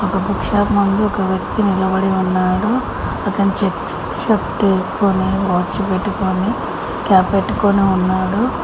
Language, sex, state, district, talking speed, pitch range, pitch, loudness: Telugu, female, Telangana, Mahabubabad, 120 wpm, 190-205 Hz, 195 Hz, -17 LUFS